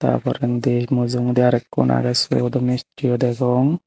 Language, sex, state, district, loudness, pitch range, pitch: Chakma, male, Tripura, Unakoti, -19 LUFS, 120-125 Hz, 125 Hz